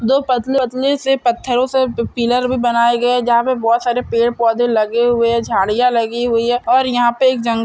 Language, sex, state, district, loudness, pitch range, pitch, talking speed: Hindi, female, Chhattisgarh, Bastar, -15 LUFS, 235-255 Hz, 240 Hz, 225 wpm